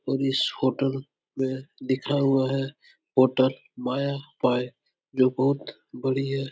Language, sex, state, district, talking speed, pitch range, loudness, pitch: Hindi, male, Uttar Pradesh, Etah, 120 wpm, 130-135 Hz, -26 LUFS, 135 Hz